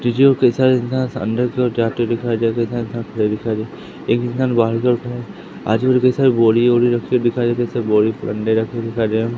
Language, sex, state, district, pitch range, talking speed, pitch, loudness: Hindi, male, Madhya Pradesh, Katni, 115-125 Hz, 180 wpm, 120 Hz, -17 LUFS